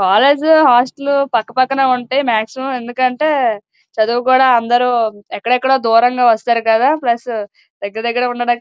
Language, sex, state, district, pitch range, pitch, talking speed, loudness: Telugu, female, Andhra Pradesh, Srikakulam, 235-265 Hz, 245 Hz, 105 wpm, -14 LUFS